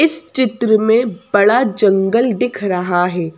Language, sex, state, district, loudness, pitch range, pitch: Hindi, female, Madhya Pradesh, Bhopal, -15 LUFS, 190-245 Hz, 220 Hz